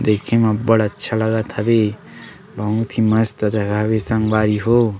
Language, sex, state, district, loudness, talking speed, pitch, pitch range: Chhattisgarhi, male, Chhattisgarh, Sarguja, -18 LUFS, 155 wpm, 110 Hz, 105-110 Hz